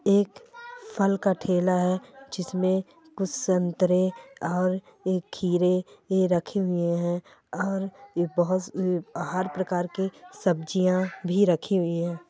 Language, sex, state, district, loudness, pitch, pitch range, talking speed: Hindi, female, Bihar, Sitamarhi, -26 LUFS, 185 Hz, 180-195 Hz, 140 wpm